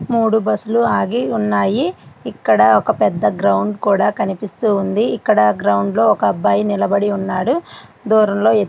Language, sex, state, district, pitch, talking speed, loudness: Telugu, female, Andhra Pradesh, Srikakulam, 200 Hz, 130 wpm, -16 LUFS